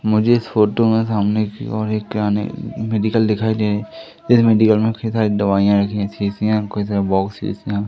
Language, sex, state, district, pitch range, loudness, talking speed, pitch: Hindi, male, Madhya Pradesh, Katni, 105-110 Hz, -18 LUFS, 165 wpm, 110 Hz